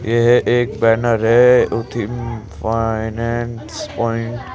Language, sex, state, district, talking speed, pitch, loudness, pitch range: Hindi, male, Uttar Pradesh, Saharanpur, 105 wpm, 115 Hz, -17 LUFS, 115-120 Hz